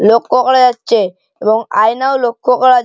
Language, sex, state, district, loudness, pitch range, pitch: Bengali, male, West Bengal, Malda, -12 LUFS, 225-255 Hz, 240 Hz